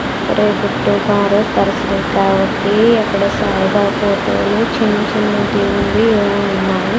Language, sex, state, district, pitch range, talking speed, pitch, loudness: Telugu, female, Andhra Pradesh, Sri Satya Sai, 200-215 Hz, 105 wpm, 205 Hz, -14 LUFS